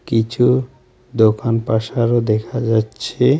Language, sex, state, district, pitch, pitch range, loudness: Bengali, male, West Bengal, Alipurduar, 115 Hz, 110-125 Hz, -17 LUFS